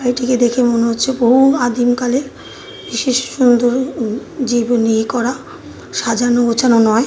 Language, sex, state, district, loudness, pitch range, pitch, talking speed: Bengali, female, West Bengal, North 24 Parganas, -15 LUFS, 235-255 Hz, 245 Hz, 125 wpm